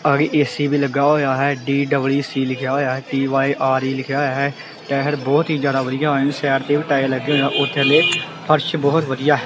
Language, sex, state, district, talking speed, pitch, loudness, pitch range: Punjabi, male, Punjab, Kapurthala, 195 wpm, 140 Hz, -18 LUFS, 135-145 Hz